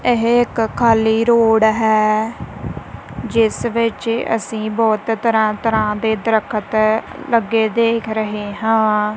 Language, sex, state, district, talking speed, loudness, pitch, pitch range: Punjabi, female, Punjab, Kapurthala, 110 wpm, -17 LUFS, 220 Hz, 215-230 Hz